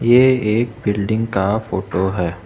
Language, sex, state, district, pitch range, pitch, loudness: Hindi, male, Arunachal Pradesh, Lower Dibang Valley, 95-115 Hz, 110 Hz, -18 LUFS